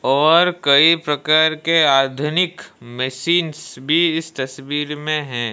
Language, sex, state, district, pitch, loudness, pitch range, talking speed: Hindi, male, Odisha, Malkangiri, 150 Hz, -17 LUFS, 135-165 Hz, 120 wpm